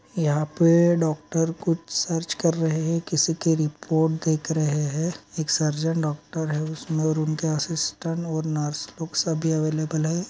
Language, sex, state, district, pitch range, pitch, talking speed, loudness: Magahi, male, Bihar, Gaya, 155-165 Hz, 160 Hz, 150 wpm, -24 LUFS